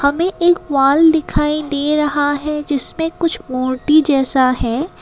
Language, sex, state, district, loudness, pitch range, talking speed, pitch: Hindi, female, Assam, Kamrup Metropolitan, -16 LUFS, 275-320 Hz, 145 wpm, 295 Hz